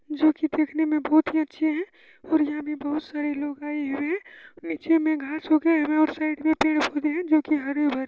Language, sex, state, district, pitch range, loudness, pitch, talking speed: Hindi, female, Bihar, Supaul, 295-315 Hz, -24 LUFS, 310 Hz, 230 wpm